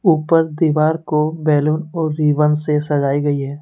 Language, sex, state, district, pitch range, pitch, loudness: Hindi, male, Jharkhand, Deoghar, 150-160 Hz, 150 Hz, -17 LUFS